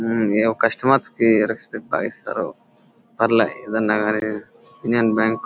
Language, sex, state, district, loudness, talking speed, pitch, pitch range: Telugu, male, Andhra Pradesh, Anantapur, -20 LUFS, 130 wpm, 110 Hz, 110-115 Hz